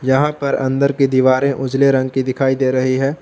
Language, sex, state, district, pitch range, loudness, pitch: Hindi, male, Jharkhand, Palamu, 130-140 Hz, -16 LUFS, 135 Hz